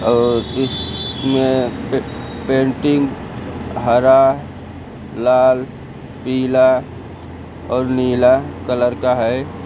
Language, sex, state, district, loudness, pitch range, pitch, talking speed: Hindi, male, Uttar Pradesh, Lucknow, -16 LUFS, 120-130 Hz, 125 Hz, 75 wpm